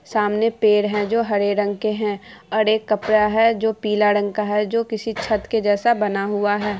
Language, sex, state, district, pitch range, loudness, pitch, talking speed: Hindi, female, Bihar, Araria, 205-220 Hz, -20 LUFS, 210 Hz, 230 wpm